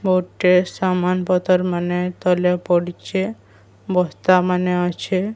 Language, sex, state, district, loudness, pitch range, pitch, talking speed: Odia, female, Odisha, Sambalpur, -19 LUFS, 180-185 Hz, 180 Hz, 80 wpm